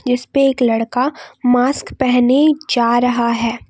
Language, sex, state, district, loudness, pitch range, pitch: Hindi, female, Jharkhand, Palamu, -15 LUFS, 240-270 Hz, 250 Hz